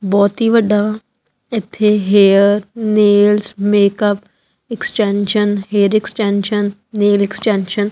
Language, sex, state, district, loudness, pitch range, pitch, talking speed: Punjabi, female, Punjab, Kapurthala, -14 LUFS, 200-215 Hz, 205 Hz, 100 wpm